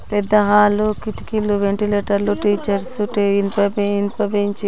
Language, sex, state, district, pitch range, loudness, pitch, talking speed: Telugu, female, Telangana, Karimnagar, 200-210 Hz, -18 LUFS, 205 Hz, 90 wpm